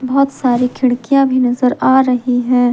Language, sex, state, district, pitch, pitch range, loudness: Hindi, female, Jharkhand, Palamu, 255 Hz, 245-265 Hz, -14 LUFS